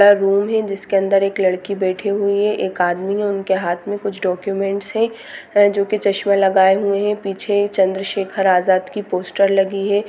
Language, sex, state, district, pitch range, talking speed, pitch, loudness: Hindi, female, Bihar, Darbhanga, 190-205 Hz, 195 wpm, 195 Hz, -18 LUFS